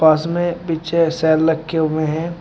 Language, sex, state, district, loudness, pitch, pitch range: Hindi, male, Uttar Pradesh, Shamli, -18 LUFS, 160 Hz, 160-170 Hz